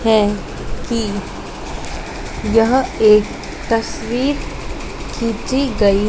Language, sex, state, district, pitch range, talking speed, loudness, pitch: Hindi, female, Madhya Pradesh, Dhar, 210-245 Hz, 70 wpm, -18 LUFS, 225 Hz